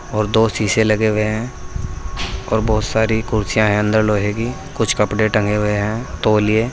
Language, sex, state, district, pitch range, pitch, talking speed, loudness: Hindi, male, Uttar Pradesh, Saharanpur, 105-110 Hz, 110 Hz, 185 wpm, -18 LUFS